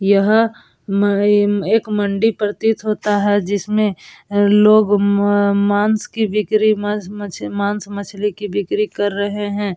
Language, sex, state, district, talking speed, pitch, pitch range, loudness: Hindi, female, Bihar, Vaishali, 135 wpm, 205 Hz, 205-210 Hz, -17 LUFS